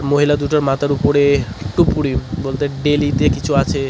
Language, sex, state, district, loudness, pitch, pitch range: Bengali, male, West Bengal, Cooch Behar, -16 LUFS, 140 Hz, 135-145 Hz